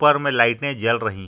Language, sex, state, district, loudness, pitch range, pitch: Hindi, male, Jharkhand, Ranchi, -19 LUFS, 115-140 Hz, 120 Hz